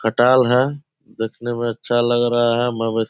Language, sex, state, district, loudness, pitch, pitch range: Hindi, male, Bihar, Purnia, -18 LUFS, 120 Hz, 115-125 Hz